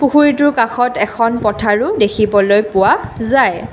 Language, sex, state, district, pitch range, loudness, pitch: Assamese, female, Assam, Kamrup Metropolitan, 210-255 Hz, -13 LUFS, 225 Hz